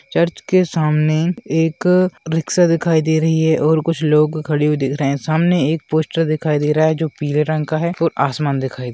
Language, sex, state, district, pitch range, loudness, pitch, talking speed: Hindi, male, Bihar, Madhepura, 150-165 Hz, -17 LUFS, 155 Hz, 220 wpm